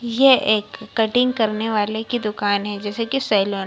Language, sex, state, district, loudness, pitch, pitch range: Hindi, female, Bihar, Kishanganj, -20 LUFS, 220 Hz, 205-240 Hz